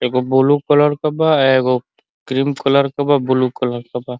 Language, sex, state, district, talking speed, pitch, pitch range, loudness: Bhojpuri, male, Uttar Pradesh, Ghazipur, 200 wpm, 135 Hz, 125-145 Hz, -16 LUFS